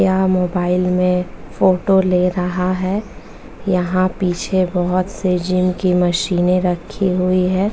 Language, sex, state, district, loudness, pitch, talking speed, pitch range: Hindi, female, Uttar Pradesh, Jalaun, -17 LUFS, 185 Hz, 130 wpm, 180-185 Hz